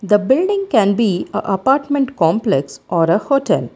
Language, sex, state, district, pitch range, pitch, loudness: English, female, Karnataka, Bangalore, 190-270 Hz, 215 Hz, -16 LUFS